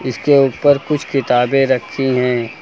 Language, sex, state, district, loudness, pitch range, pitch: Hindi, male, Uttar Pradesh, Lucknow, -15 LUFS, 125-140 Hz, 135 Hz